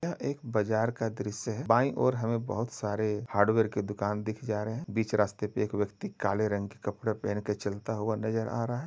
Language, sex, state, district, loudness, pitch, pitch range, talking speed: Hindi, male, Uttar Pradesh, Jalaun, -31 LUFS, 110 Hz, 105-115 Hz, 230 wpm